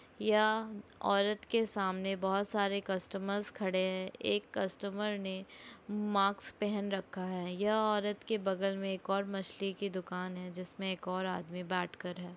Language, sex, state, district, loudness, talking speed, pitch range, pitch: Hindi, female, Bihar, Sitamarhi, -35 LUFS, 170 wpm, 185-205 Hz, 195 Hz